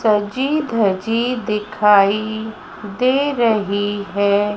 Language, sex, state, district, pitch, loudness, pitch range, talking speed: Hindi, female, Madhya Pradesh, Dhar, 215 Hz, -18 LUFS, 205-230 Hz, 80 wpm